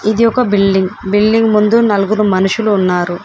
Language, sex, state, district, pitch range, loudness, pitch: Telugu, female, Telangana, Komaram Bheem, 190-220 Hz, -12 LUFS, 210 Hz